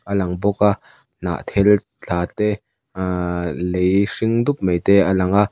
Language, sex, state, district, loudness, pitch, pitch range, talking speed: Mizo, male, Mizoram, Aizawl, -19 LUFS, 100 Hz, 90-105 Hz, 185 wpm